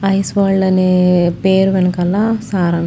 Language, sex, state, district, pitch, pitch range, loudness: Telugu, female, Andhra Pradesh, Chittoor, 190 Hz, 180-195 Hz, -14 LUFS